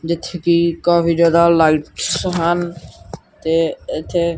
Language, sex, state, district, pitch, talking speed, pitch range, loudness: Punjabi, male, Punjab, Kapurthala, 170 Hz, 110 wpm, 165-175 Hz, -16 LUFS